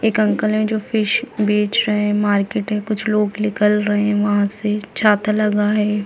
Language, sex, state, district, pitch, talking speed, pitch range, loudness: Hindi, female, Chhattisgarh, Bilaspur, 210 Hz, 200 wpm, 210-215 Hz, -18 LUFS